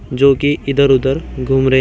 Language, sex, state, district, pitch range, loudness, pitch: Hindi, male, Uttar Pradesh, Shamli, 130-140 Hz, -14 LUFS, 135 Hz